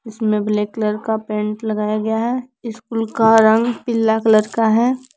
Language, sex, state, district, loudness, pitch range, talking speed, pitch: Hindi, female, Jharkhand, Palamu, -17 LUFS, 215-230 Hz, 175 wpm, 220 Hz